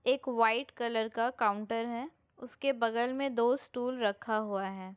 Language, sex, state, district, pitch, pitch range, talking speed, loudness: Hindi, female, Chhattisgarh, Bilaspur, 235 Hz, 220-250 Hz, 170 wpm, -32 LUFS